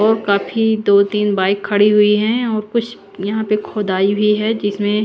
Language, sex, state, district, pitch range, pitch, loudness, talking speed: Hindi, female, Chandigarh, Chandigarh, 205-220 Hz, 210 Hz, -16 LUFS, 200 wpm